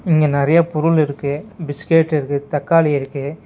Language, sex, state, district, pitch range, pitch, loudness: Tamil, male, Tamil Nadu, Nilgiris, 145-165 Hz, 150 Hz, -17 LUFS